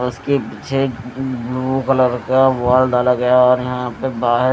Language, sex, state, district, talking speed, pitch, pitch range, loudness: Hindi, male, Odisha, Nuapada, 170 wpm, 125 Hz, 125-130 Hz, -17 LUFS